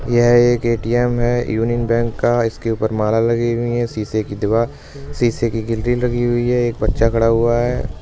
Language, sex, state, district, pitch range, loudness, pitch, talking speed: Bundeli, male, Uttar Pradesh, Budaun, 115-120 Hz, -17 LUFS, 115 Hz, 200 wpm